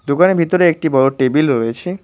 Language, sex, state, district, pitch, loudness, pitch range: Bengali, male, West Bengal, Cooch Behar, 155 Hz, -14 LUFS, 135-180 Hz